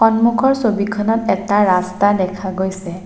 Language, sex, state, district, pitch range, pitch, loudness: Assamese, female, Assam, Sonitpur, 190-225 Hz, 205 Hz, -16 LUFS